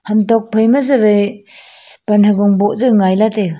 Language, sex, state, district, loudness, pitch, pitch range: Wancho, female, Arunachal Pradesh, Longding, -13 LUFS, 210 Hz, 205-225 Hz